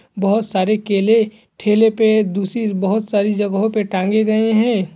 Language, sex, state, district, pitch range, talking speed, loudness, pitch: Hindi, male, Bihar, Gaya, 200-220 Hz, 155 wpm, -17 LUFS, 215 Hz